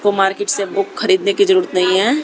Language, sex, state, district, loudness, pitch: Hindi, female, Haryana, Rohtak, -15 LUFS, 205 Hz